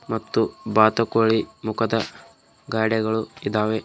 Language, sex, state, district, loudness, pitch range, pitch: Kannada, male, Karnataka, Bidar, -22 LUFS, 110-115 Hz, 110 Hz